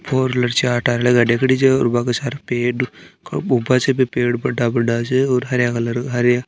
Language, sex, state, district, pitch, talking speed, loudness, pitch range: Marwari, male, Rajasthan, Nagaur, 125 Hz, 185 wpm, -18 LUFS, 120-130 Hz